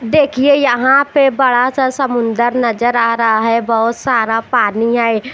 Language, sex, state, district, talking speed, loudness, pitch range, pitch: Hindi, female, Chhattisgarh, Raipur, 155 wpm, -13 LUFS, 230-265 Hz, 240 Hz